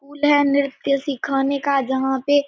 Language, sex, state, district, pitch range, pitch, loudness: Hindi, female, Bihar, Samastipur, 270-285 Hz, 280 Hz, -20 LUFS